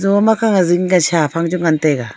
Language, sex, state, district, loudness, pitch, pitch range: Wancho, female, Arunachal Pradesh, Longding, -14 LUFS, 175 Hz, 160-195 Hz